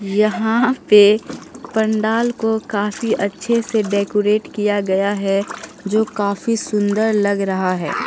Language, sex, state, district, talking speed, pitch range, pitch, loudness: Hindi, female, Bihar, Katihar, 125 wpm, 200-220 Hz, 210 Hz, -18 LUFS